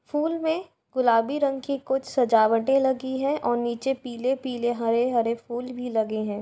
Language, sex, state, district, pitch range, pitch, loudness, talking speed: Hindi, female, Uttar Pradesh, Jalaun, 235-270 Hz, 255 Hz, -25 LUFS, 160 wpm